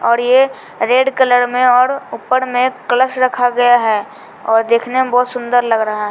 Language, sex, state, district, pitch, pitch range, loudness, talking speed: Hindi, female, Bihar, Patna, 245 Hz, 235-255 Hz, -14 LUFS, 195 wpm